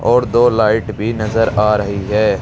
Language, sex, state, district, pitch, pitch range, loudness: Hindi, male, Uttar Pradesh, Saharanpur, 110 Hz, 105-115 Hz, -15 LUFS